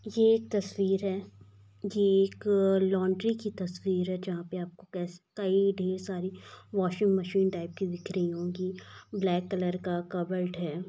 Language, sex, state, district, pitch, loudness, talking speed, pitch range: Hindi, female, Bihar, Saharsa, 185 Hz, -30 LUFS, 155 wpm, 180-195 Hz